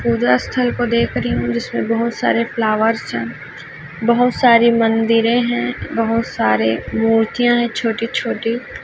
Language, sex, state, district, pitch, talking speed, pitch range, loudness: Hindi, female, Chhattisgarh, Raipur, 230 Hz, 145 wpm, 225-235 Hz, -17 LUFS